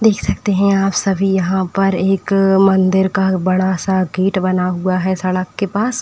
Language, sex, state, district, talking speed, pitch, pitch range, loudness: Hindi, female, Uttar Pradesh, Etah, 200 wpm, 190 Hz, 185-195 Hz, -15 LUFS